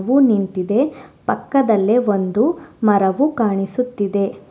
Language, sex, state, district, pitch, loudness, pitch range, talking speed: Kannada, female, Karnataka, Shimoga, 220 Hz, -18 LUFS, 200-260 Hz, 80 wpm